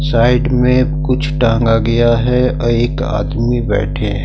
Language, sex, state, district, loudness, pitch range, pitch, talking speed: Hindi, male, Jharkhand, Ranchi, -14 LUFS, 120-130 Hz, 125 Hz, 155 wpm